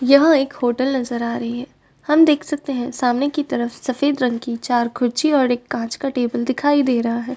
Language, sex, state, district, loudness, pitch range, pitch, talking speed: Hindi, female, Uttar Pradesh, Varanasi, -19 LUFS, 240-285 Hz, 255 Hz, 230 wpm